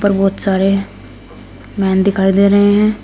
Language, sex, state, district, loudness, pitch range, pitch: Hindi, female, Uttar Pradesh, Shamli, -13 LUFS, 120-200 Hz, 195 Hz